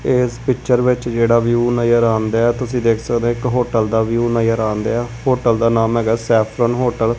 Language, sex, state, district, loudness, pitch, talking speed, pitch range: Punjabi, male, Punjab, Kapurthala, -16 LUFS, 120 Hz, 215 wpm, 115-120 Hz